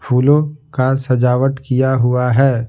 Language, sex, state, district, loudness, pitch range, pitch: Hindi, male, Bihar, Patna, -15 LUFS, 125-135 Hz, 130 Hz